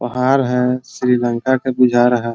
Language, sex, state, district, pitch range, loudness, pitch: Hindi, male, Bihar, Muzaffarpur, 120-130 Hz, -16 LUFS, 125 Hz